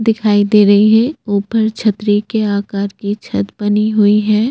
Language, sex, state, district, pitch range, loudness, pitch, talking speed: Hindi, female, Chhattisgarh, Bastar, 205-220 Hz, -14 LUFS, 210 Hz, 175 wpm